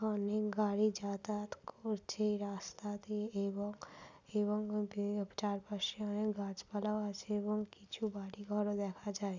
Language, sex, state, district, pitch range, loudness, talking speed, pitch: Bengali, female, West Bengal, Malda, 200-210 Hz, -39 LUFS, 130 wpm, 205 Hz